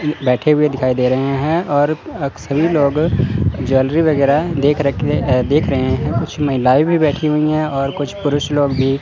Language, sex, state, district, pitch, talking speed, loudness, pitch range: Hindi, male, Chandigarh, Chandigarh, 145 Hz, 195 wpm, -16 LUFS, 130-150 Hz